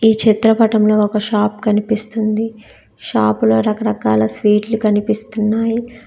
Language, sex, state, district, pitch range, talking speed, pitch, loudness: Telugu, female, Telangana, Hyderabad, 210-220 Hz, 80 wpm, 215 Hz, -16 LUFS